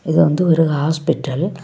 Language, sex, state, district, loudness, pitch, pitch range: Tamil, female, Tamil Nadu, Kanyakumari, -17 LUFS, 160 Hz, 150-165 Hz